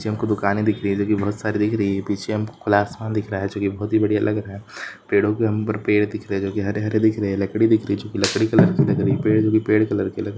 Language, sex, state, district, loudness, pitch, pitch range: Hindi, male, Rajasthan, Churu, -21 LUFS, 105 Hz, 100-110 Hz